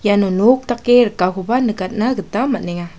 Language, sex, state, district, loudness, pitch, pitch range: Garo, female, Meghalaya, South Garo Hills, -16 LUFS, 215 Hz, 190-245 Hz